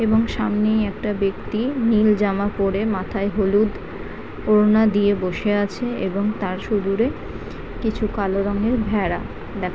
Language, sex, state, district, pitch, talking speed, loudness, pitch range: Bengali, female, West Bengal, Jhargram, 210 Hz, 135 wpm, -21 LUFS, 200-220 Hz